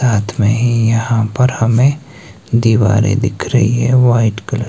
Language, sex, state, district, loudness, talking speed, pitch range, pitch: Hindi, male, Himachal Pradesh, Shimla, -13 LUFS, 165 wpm, 110-125 Hz, 115 Hz